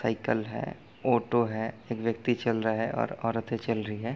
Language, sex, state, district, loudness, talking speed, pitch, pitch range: Hindi, male, Bihar, Gopalganj, -30 LUFS, 215 wpm, 115 Hz, 110-120 Hz